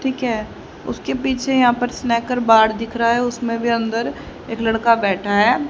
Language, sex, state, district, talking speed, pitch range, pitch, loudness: Hindi, female, Haryana, Jhajjar, 180 wpm, 225-245 Hz, 235 Hz, -18 LUFS